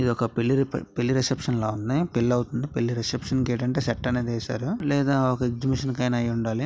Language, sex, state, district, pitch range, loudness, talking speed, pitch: Telugu, male, Andhra Pradesh, Visakhapatnam, 120-130 Hz, -25 LUFS, 180 wpm, 125 Hz